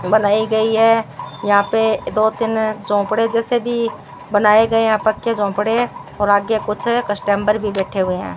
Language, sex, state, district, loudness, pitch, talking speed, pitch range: Hindi, female, Rajasthan, Bikaner, -17 LUFS, 215 Hz, 170 wpm, 205-225 Hz